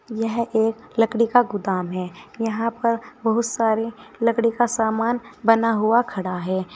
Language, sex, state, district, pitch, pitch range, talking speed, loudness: Hindi, female, Uttar Pradesh, Saharanpur, 225 Hz, 220-235 Hz, 150 wpm, -22 LUFS